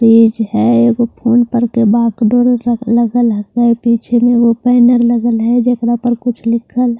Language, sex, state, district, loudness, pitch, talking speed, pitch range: Hindi, female, Bihar, Katihar, -12 LUFS, 235 Hz, 225 wpm, 230-240 Hz